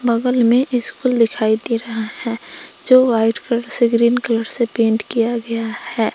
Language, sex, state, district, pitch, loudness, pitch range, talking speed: Hindi, female, Jharkhand, Palamu, 230 Hz, -17 LUFS, 225-245 Hz, 175 wpm